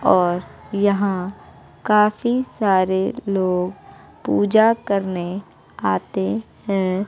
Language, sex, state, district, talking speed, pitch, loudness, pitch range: Hindi, female, Bihar, West Champaran, 75 wpm, 195 Hz, -20 LUFS, 185-210 Hz